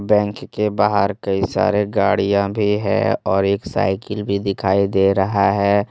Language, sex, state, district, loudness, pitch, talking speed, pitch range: Hindi, male, Jharkhand, Deoghar, -18 LUFS, 100 Hz, 160 wpm, 95-105 Hz